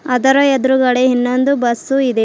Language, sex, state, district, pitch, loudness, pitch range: Kannada, female, Karnataka, Bidar, 255 Hz, -14 LUFS, 250-270 Hz